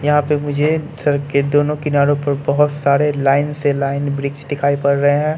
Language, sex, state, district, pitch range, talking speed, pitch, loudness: Hindi, male, Bihar, Katihar, 140-150 Hz, 200 wpm, 145 Hz, -17 LUFS